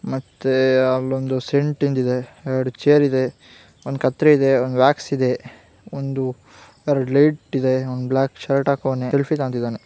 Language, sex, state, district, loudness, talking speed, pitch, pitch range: Kannada, female, Karnataka, Gulbarga, -20 LUFS, 150 wpm, 130 Hz, 130-140 Hz